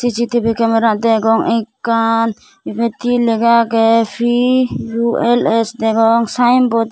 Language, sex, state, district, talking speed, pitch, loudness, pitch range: Chakma, female, Tripura, Dhalai, 95 wpm, 230 Hz, -14 LUFS, 225-240 Hz